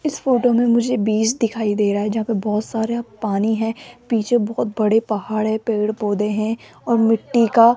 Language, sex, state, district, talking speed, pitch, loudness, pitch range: Hindi, female, Rajasthan, Jaipur, 210 wpm, 225 Hz, -19 LUFS, 215-235 Hz